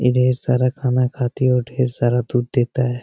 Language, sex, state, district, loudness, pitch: Hindi, male, Bihar, Jamui, -19 LUFS, 125 Hz